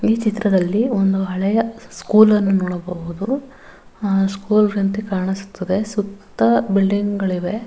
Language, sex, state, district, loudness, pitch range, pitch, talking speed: Kannada, female, Karnataka, Bellary, -19 LUFS, 190-215 Hz, 200 Hz, 110 wpm